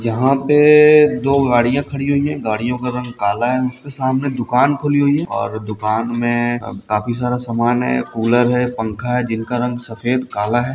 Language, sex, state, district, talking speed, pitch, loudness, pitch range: Hindi, male, Bihar, Samastipur, 190 wpm, 125 Hz, -17 LUFS, 115-135 Hz